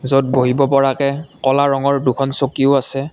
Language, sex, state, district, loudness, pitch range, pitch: Assamese, male, Assam, Kamrup Metropolitan, -16 LUFS, 135-140 Hz, 135 Hz